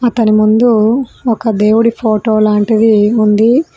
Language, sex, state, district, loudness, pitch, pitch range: Telugu, female, Telangana, Mahabubabad, -11 LUFS, 220 Hz, 215-230 Hz